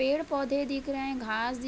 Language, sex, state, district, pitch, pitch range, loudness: Hindi, female, Uttar Pradesh, Budaun, 275 Hz, 255-280 Hz, -31 LUFS